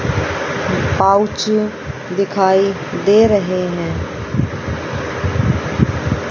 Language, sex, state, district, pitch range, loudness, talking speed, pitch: Hindi, female, Haryana, Rohtak, 185-205 Hz, -17 LUFS, 45 wpm, 195 Hz